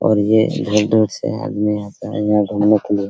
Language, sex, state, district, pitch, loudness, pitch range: Hindi, male, Bihar, Araria, 105 Hz, -17 LUFS, 105-110 Hz